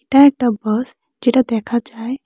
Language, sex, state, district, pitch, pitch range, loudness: Bengali, female, Tripura, West Tripura, 240 Hz, 225-260 Hz, -16 LUFS